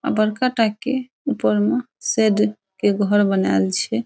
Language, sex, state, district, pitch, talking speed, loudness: Maithili, female, Bihar, Saharsa, 210 Hz, 160 wpm, -20 LUFS